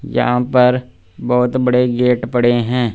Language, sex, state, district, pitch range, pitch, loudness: Hindi, male, Punjab, Fazilka, 120-125 Hz, 125 Hz, -15 LUFS